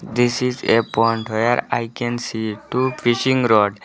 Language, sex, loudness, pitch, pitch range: English, male, -19 LUFS, 120 Hz, 110-120 Hz